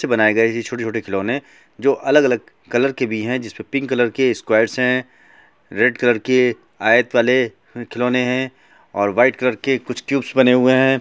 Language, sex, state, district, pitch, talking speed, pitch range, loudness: Hindi, male, Bihar, Gopalganj, 125 Hz, 185 wpm, 115-130 Hz, -18 LUFS